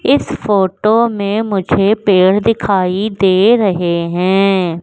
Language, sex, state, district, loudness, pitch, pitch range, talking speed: Hindi, female, Madhya Pradesh, Katni, -13 LUFS, 195 Hz, 185-210 Hz, 110 wpm